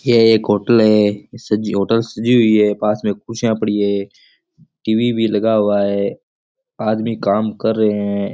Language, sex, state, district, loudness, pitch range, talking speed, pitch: Rajasthani, male, Rajasthan, Churu, -16 LUFS, 105-115 Hz, 175 wpm, 110 Hz